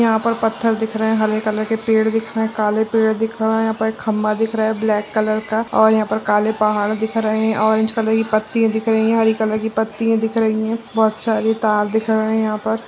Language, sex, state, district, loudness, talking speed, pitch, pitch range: Hindi, female, Uttarakhand, Uttarkashi, -18 LUFS, 260 wpm, 220 Hz, 215-225 Hz